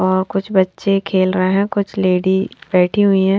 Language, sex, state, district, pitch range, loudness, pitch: Hindi, female, Haryana, Rohtak, 185-195 Hz, -16 LUFS, 190 Hz